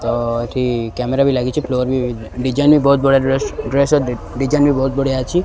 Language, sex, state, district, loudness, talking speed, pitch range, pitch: Odia, male, Odisha, Khordha, -16 LUFS, 210 wpm, 125-140 Hz, 135 Hz